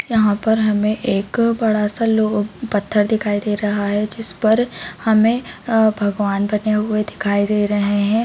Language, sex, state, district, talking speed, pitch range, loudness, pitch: Hindi, female, Chhattisgarh, Bilaspur, 165 wpm, 205-220 Hz, -18 LUFS, 210 Hz